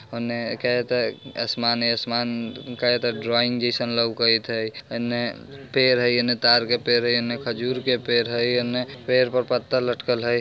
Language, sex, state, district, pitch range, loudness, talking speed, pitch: Bajjika, male, Bihar, Vaishali, 120-125 Hz, -22 LUFS, 175 wpm, 120 Hz